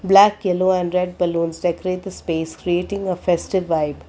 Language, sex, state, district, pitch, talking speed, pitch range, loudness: English, female, Karnataka, Bangalore, 180 Hz, 175 wpm, 170-185 Hz, -20 LUFS